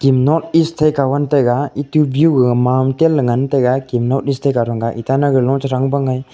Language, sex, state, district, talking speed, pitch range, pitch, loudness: Wancho, male, Arunachal Pradesh, Longding, 200 wpm, 130-145 Hz, 135 Hz, -15 LUFS